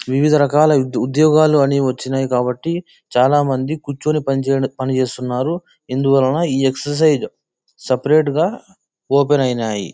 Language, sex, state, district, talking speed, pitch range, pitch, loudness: Telugu, male, Andhra Pradesh, Anantapur, 120 wpm, 130-155 Hz, 135 Hz, -17 LUFS